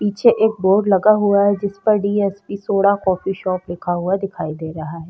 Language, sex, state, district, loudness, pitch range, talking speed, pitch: Hindi, female, Uttar Pradesh, Budaun, -18 LUFS, 180-205 Hz, 210 wpm, 195 Hz